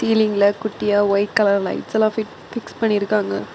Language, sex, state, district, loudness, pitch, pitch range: Tamil, female, Tamil Nadu, Kanyakumari, -19 LUFS, 210 Hz, 200-220 Hz